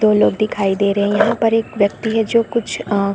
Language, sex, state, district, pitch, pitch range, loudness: Hindi, female, Chhattisgarh, Korba, 215 Hz, 200-225 Hz, -17 LUFS